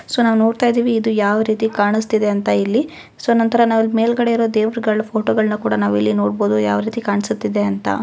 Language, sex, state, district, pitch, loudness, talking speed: Kannada, female, Karnataka, Gulbarga, 220 Hz, -17 LUFS, 165 wpm